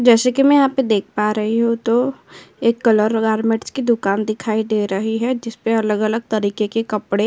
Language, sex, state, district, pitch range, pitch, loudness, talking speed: Hindi, female, Uttar Pradesh, Jyotiba Phule Nagar, 215-235 Hz, 225 Hz, -18 LUFS, 205 wpm